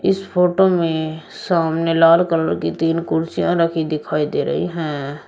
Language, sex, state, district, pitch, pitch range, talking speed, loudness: Hindi, male, Uttar Pradesh, Shamli, 165 Hz, 160-175 Hz, 160 wpm, -18 LUFS